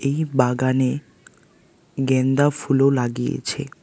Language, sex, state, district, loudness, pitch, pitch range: Bengali, male, West Bengal, Alipurduar, -21 LUFS, 135 Hz, 130-140 Hz